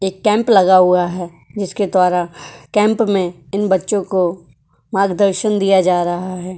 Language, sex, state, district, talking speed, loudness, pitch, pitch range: Hindi, female, Uttar Pradesh, Jyotiba Phule Nagar, 155 wpm, -16 LUFS, 185 Hz, 180-200 Hz